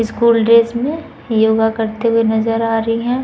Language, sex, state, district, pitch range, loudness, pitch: Hindi, female, Uttar Pradesh, Muzaffarnagar, 225-235 Hz, -15 LUFS, 230 Hz